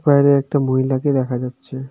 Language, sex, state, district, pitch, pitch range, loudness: Bengali, male, West Bengal, Darjeeling, 135 Hz, 130-140 Hz, -18 LUFS